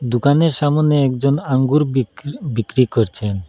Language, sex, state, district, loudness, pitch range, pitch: Bengali, male, Assam, Hailakandi, -17 LUFS, 120-145 Hz, 130 Hz